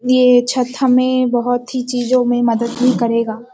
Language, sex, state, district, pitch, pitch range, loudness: Hindi, female, Bihar, Sitamarhi, 245 Hz, 240-255 Hz, -15 LUFS